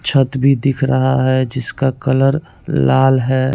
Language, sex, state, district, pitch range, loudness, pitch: Hindi, male, Chandigarh, Chandigarh, 130-135 Hz, -15 LUFS, 130 Hz